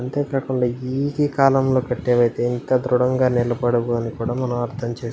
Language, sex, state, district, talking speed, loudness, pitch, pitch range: Telugu, male, Andhra Pradesh, Anantapur, 140 wpm, -20 LUFS, 125 Hz, 120-130 Hz